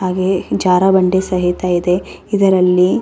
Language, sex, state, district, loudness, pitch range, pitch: Kannada, female, Karnataka, Raichur, -14 LUFS, 180-190 Hz, 185 Hz